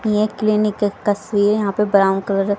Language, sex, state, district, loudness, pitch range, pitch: Hindi, female, Haryana, Rohtak, -18 LUFS, 200-210 Hz, 205 Hz